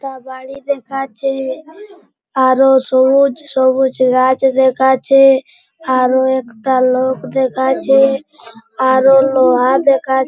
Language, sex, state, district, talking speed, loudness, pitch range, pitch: Bengali, male, West Bengal, Purulia, 105 wpm, -13 LUFS, 260-270 Hz, 265 Hz